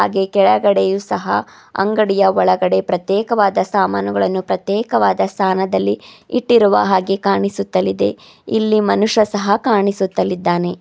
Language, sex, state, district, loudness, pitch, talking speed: Kannada, female, Karnataka, Bidar, -16 LUFS, 195 Hz, 90 wpm